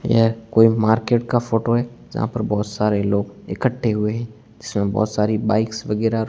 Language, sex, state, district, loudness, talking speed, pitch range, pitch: Hindi, male, Rajasthan, Barmer, -20 LUFS, 180 wpm, 105-115 Hz, 110 Hz